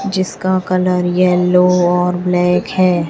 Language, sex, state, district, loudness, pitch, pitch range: Hindi, female, Chhattisgarh, Raipur, -14 LUFS, 180 Hz, 180-185 Hz